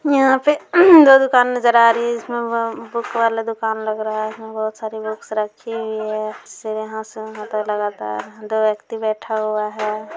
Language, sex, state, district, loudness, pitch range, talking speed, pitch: Hindi, female, Bihar, Saran, -18 LUFS, 215-235 Hz, 190 wpm, 220 Hz